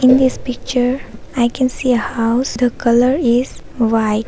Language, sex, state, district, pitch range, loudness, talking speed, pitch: English, female, Arunachal Pradesh, Papum Pare, 235-255 Hz, -16 LUFS, 170 wpm, 245 Hz